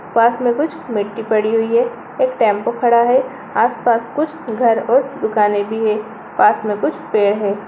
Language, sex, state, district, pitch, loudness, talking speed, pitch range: Hindi, female, Bihar, Sitamarhi, 230 Hz, -17 LUFS, 180 wpm, 215-245 Hz